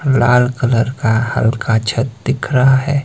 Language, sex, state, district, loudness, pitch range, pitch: Hindi, male, Himachal Pradesh, Shimla, -15 LUFS, 115-135 Hz, 125 Hz